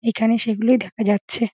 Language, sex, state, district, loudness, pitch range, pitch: Bengali, female, West Bengal, Dakshin Dinajpur, -20 LUFS, 215-230 Hz, 225 Hz